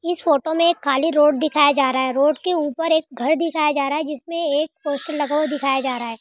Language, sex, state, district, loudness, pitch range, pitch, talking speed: Hindi, female, Rajasthan, Churu, -19 LUFS, 280-320 Hz, 295 Hz, 270 wpm